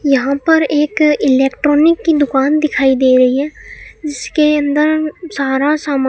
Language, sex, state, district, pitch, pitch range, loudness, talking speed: Hindi, female, Rajasthan, Bikaner, 295 Hz, 275-310 Hz, -13 LUFS, 150 wpm